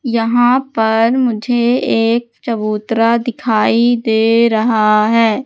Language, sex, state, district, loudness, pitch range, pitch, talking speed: Hindi, female, Madhya Pradesh, Katni, -14 LUFS, 225-240 Hz, 230 Hz, 100 wpm